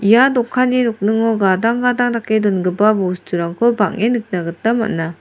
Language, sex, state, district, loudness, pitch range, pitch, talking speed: Garo, female, Meghalaya, South Garo Hills, -16 LUFS, 185-235 Hz, 220 Hz, 140 wpm